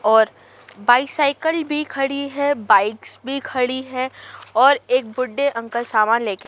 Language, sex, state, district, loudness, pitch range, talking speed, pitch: Hindi, female, Madhya Pradesh, Dhar, -19 LUFS, 220-280 Hz, 150 wpm, 255 Hz